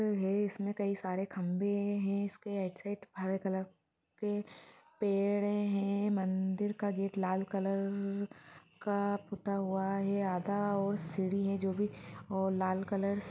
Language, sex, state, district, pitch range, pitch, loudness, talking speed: Hindi, female, Uttar Pradesh, Deoria, 190-200 Hz, 195 Hz, -35 LUFS, 160 wpm